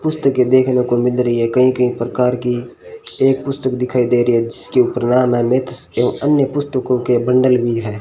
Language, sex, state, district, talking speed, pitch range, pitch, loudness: Hindi, male, Rajasthan, Bikaner, 210 wpm, 120-130 Hz, 125 Hz, -16 LUFS